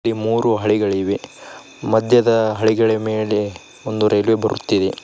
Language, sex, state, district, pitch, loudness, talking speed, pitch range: Kannada, male, Karnataka, Koppal, 110 Hz, -18 LUFS, 105 wpm, 105-110 Hz